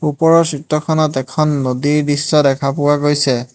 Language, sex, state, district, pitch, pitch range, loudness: Assamese, male, Assam, Hailakandi, 145 Hz, 140-150 Hz, -15 LUFS